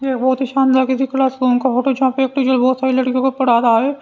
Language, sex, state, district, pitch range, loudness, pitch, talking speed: Hindi, male, Haryana, Rohtak, 255-265 Hz, -16 LUFS, 260 Hz, 315 wpm